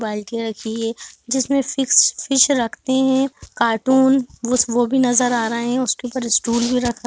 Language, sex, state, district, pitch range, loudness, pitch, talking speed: Hindi, female, Bihar, Gopalganj, 235-265 Hz, -18 LUFS, 250 Hz, 170 wpm